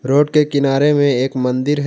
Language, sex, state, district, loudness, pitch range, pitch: Hindi, male, Jharkhand, Ranchi, -15 LUFS, 130-145 Hz, 140 Hz